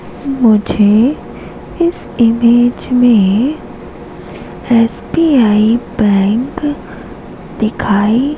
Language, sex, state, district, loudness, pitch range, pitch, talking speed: Hindi, female, Madhya Pradesh, Katni, -12 LUFS, 215-270 Hz, 235 Hz, 50 wpm